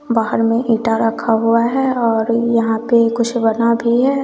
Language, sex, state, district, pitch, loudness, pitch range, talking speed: Hindi, female, Bihar, West Champaran, 230 Hz, -15 LUFS, 225-235 Hz, 185 wpm